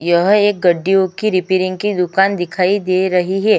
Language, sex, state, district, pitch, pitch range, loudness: Hindi, female, Chhattisgarh, Sukma, 185 Hz, 180-200 Hz, -15 LUFS